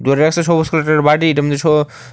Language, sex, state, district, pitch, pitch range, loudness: Bengali, male, Tripura, West Tripura, 155 Hz, 145-160 Hz, -14 LUFS